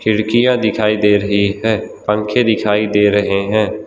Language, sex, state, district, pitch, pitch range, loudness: Hindi, male, Gujarat, Valsad, 105 Hz, 105-110 Hz, -15 LUFS